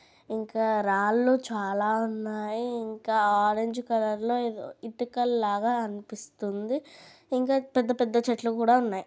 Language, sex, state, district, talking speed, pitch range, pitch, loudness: Telugu, female, Andhra Pradesh, Krishna, 120 wpm, 215-245 Hz, 230 Hz, -27 LUFS